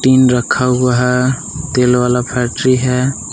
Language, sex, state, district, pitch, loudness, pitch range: Hindi, male, Jharkhand, Palamu, 125 Hz, -14 LUFS, 125-130 Hz